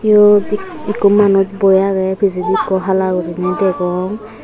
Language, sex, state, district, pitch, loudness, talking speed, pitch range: Chakma, female, Tripura, Unakoti, 195 Hz, -14 LUFS, 135 wpm, 185-205 Hz